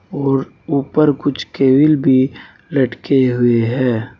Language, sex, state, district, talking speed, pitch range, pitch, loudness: Hindi, male, Uttar Pradesh, Saharanpur, 115 wpm, 125-145 Hz, 135 Hz, -16 LUFS